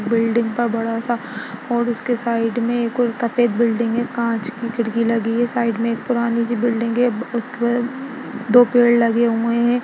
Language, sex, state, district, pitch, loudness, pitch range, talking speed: Hindi, female, Bihar, Gaya, 235 Hz, -19 LUFS, 230-240 Hz, 185 wpm